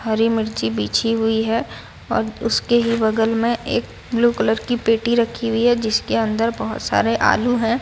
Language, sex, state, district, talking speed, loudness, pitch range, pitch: Hindi, female, Odisha, Sambalpur, 185 wpm, -19 LUFS, 220-235 Hz, 225 Hz